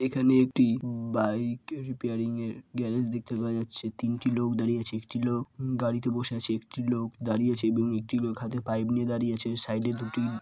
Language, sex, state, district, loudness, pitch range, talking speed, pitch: Bengali, female, West Bengal, Purulia, -29 LUFS, 115-120 Hz, 190 wpm, 120 Hz